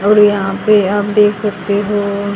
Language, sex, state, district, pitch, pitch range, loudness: Hindi, female, Haryana, Rohtak, 205 Hz, 200-210 Hz, -13 LUFS